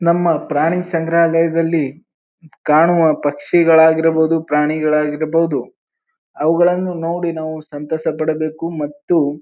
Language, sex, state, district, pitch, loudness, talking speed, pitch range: Kannada, male, Karnataka, Bijapur, 160 Hz, -16 LUFS, 75 wpm, 155-165 Hz